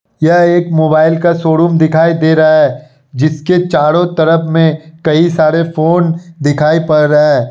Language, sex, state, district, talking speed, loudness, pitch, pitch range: Hindi, male, Bihar, Kishanganj, 160 wpm, -10 LUFS, 160 Hz, 155-165 Hz